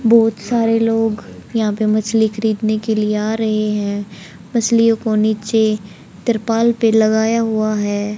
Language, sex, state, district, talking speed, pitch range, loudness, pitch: Hindi, female, Haryana, Charkhi Dadri, 145 wpm, 210-225 Hz, -17 LUFS, 220 Hz